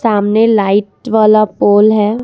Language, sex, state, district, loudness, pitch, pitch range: Hindi, female, Jharkhand, Ranchi, -11 LUFS, 215 Hz, 205-220 Hz